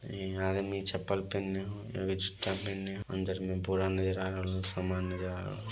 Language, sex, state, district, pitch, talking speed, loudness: Magahi, male, Bihar, Samastipur, 95 Hz, 210 wpm, -30 LUFS